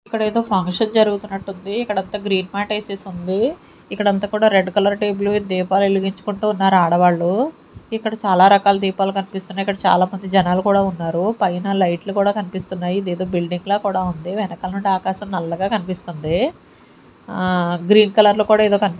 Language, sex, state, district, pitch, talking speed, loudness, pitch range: Telugu, female, Andhra Pradesh, Sri Satya Sai, 195 Hz, 150 wpm, -18 LUFS, 185-205 Hz